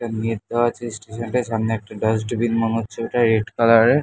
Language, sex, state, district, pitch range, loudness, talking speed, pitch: Bengali, male, West Bengal, North 24 Parganas, 110-120 Hz, -21 LUFS, 210 wpm, 115 Hz